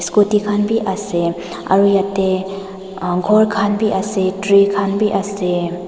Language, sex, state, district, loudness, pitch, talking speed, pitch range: Nagamese, female, Nagaland, Dimapur, -16 LUFS, 195 Hz, 155 wpm, 190-205 Hz